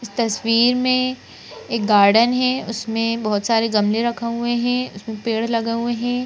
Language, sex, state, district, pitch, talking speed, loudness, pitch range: Hindi, female, Madhya Pradesh, Bhopal, 230 Hz, 165 wpm, -19 LUFS, 225-245 Hz